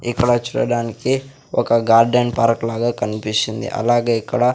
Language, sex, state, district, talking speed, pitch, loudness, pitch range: Telugu, male, Andhra Pradesh, Sri Satya Sai, 120 wpm, 120 Hz, -18 LUFS, 115-120 Hz